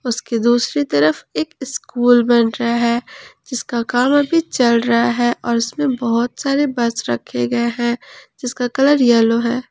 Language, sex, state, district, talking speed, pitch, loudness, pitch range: Hindi, female, Jharkhand, Palamu, 160 wpm, 240 Hz, -17 LUFS, 235-255 Hz